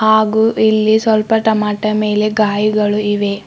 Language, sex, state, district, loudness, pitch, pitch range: Kannada, female, Karnataka, Bidar, -14 LUFS, 215 Hz, 210-220 Hz